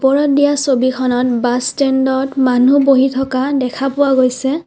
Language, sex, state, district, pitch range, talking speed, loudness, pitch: Assamese, female, Assam, Kamrup Metropolitan, 255-275 Hz, 140 wpm, -14 LUFS, 265 Hz